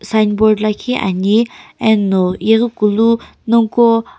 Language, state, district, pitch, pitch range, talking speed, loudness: Sumi, Nagaland, Kohima, 220 Hz, 210-230 Hz, 85 wpm, -14 LUFS